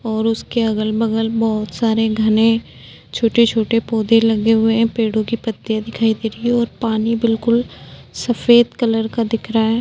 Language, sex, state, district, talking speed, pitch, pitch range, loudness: Hindi, female, Uttar Pradesh, Budaun, 165 wpm, 225 Hz, 220-230 Hz, -17 LUFS